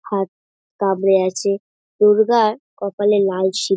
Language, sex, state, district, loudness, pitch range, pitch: Bengali, female, West Bengal, North 24 Parganas, -18 LUFS, 195-210 Hz, 200 Hz